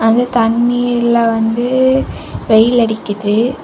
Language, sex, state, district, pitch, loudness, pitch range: Tamil, female, Tamil Nadu, Kanyakumari, 235 Hz, -13 LUFS, 225-245 Hz